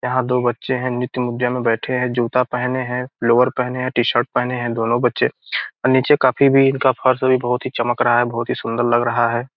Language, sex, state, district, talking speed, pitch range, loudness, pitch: Hindi, male, Bihar, Gopalganj, 220 wpm, 120-130 Hz, -18 LUFS, 125 Hz